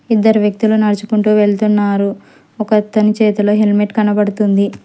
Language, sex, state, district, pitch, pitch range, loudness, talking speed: Telugu, male, Telangana, Hyderabad, 210 Hz, 205-215 Hz, -13 LUFS, 100 wpm